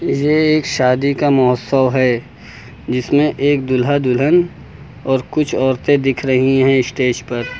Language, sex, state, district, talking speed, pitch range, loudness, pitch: Hindi, male, Uttar Pradesh, Lucknow, 140 wpm, 125-145 Hz, -15 LUFS, 130 Hz